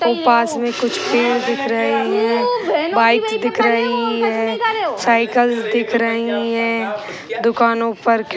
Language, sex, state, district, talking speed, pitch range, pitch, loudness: Hindi, female, Bihar, Sitamarhi, 135 wpm, 225-240 Hz, 230 Hz, -17 LUFS